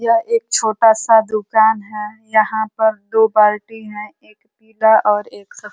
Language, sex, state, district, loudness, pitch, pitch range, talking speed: Hindi, female, Uttar Pradesh, Ghazipur, -15 LUFS, 220 Hz, 215-225 Hz, 170 wpm